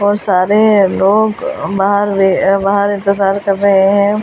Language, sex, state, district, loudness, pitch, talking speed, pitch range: Hindi, female, Delhi, New Delhi, -12 LUFS, 200 Hz, 155 wpm, 195-205 Hz